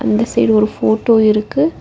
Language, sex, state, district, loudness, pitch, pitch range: Tamil, female, Tamil Nadu, Nilgiris, -14 LUFS, 220 Hz, 215-235 Hz